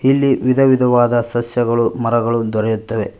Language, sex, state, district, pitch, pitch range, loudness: Kannada, male, Karnataka, Koppal, 120 Hz, 115-125 Hz, -15 LUFS